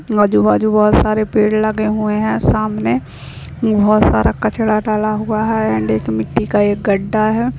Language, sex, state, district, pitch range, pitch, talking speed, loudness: Hindi, female, Bihar, Bhagalpur, 130-215 Hz, 210 Hz, 165 wpm, -15 LUFS